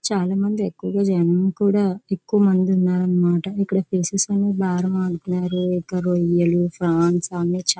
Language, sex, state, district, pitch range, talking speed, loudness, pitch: Telugu, female, Andhra Pradesh, Visakhapatnam, 175-195 Hz, 130 wpm, -20 LUFS, 185 Hz